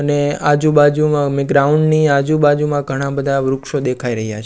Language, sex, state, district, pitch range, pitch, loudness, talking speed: Gujarati, male, Gujarat, Gandhinagar, 135-150 Hz, 145 Hz, -15 LUFS, 175 wpm